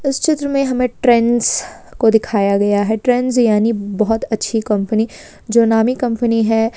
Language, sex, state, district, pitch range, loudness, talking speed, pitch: Hindi, female, West Bengal, Purulia, 220-245 Hz, -16 LUFS, 160 wpm, 225 Hz